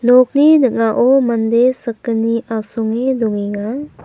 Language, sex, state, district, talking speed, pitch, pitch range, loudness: Garo, female, Meghalaya, West Garo Hills, 90 wpm, 235 Hz, 225-255 Hz, -15 LUFS